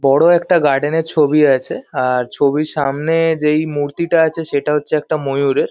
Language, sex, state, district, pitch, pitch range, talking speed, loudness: Bengali, male, West Bengal, Kolkata, 150 Hz, 140-160 Hz, 170 wpm, -15 LUFS